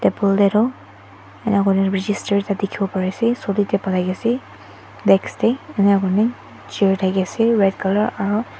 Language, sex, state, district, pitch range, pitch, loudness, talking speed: Nagamese, female, Nagaland, Dimapur, 190-210 Hz, 200 Hz, -19 LUFS, 155 wpm